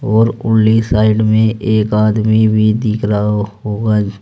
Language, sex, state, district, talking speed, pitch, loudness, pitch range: Hindi, male, Uttar Pradesh, Saharanpur, 140 wpm, 110 Hz, -13 LUFS, 105-110 Hz